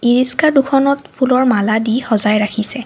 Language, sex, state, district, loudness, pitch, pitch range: Assamese, female, Assam, Kamrup Metropolitan, -14 LUFS, 250 Hz, 220-270 Hz